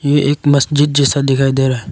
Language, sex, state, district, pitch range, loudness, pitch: Hindi, male, Arunachal Pradesh, Longding, 135-145 Hz, -13 LUFS, 140 Hz